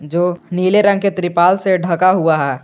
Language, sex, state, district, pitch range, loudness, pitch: Hindi, male, Jharkhand, Garhwa, 170-185 Hz, -14 LUFS, 180 Hz